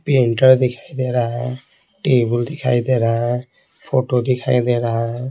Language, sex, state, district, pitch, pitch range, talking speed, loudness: Hindi, male, Bihar, Patna, 125 Hz, 120-130 Hz, 170 wpm, -18 LUFS